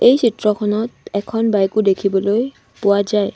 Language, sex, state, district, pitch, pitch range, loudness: Assamese, female, Assam, Sonitpur, 210 Hz, 200-225 Hz, -17 LUFS